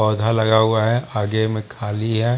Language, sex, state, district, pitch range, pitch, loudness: Hindi, male, Bihar, Jamui, 110-115 Hz, 110 Hz, -19 LUFS